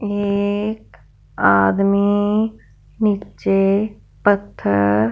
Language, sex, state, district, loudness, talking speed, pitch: Hindi, female, Punjab, Fazilka, -18 LUFS, 45 wpm, 200 Hz